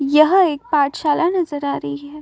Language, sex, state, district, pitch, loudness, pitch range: Hindi, female, Uttar Pradesh, Muzaffarnagar, 290 Hz, -18 LUFS, 275-330 Hz